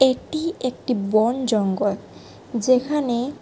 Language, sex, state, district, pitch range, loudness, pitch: Bengali, female, Tripura, West Tripura, 215-265 Hz, -22 LUFS, 245 Hz